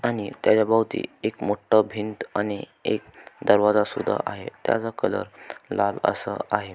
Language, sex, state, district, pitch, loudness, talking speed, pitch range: Marathi, male, Maharashtra, Sindhudurg, 105 Hz, -24 LUFS, 125 wpm, 105-110 Hz